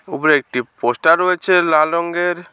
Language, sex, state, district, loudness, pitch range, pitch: Bengali, male, West Bengal, Alipurduar, -16 LUFS, 155-175 Hz, 165 Hz